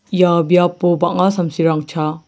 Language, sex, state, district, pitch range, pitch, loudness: Garo, male, Meghalaya, South Garo Hills, 160-180 Hz, 175 Hz, -15 LUFS